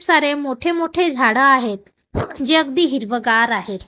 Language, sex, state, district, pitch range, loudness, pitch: Marathi, female, Maharashtra, Gondia, 230-325 Hz, -16 LUFS, 270 Hz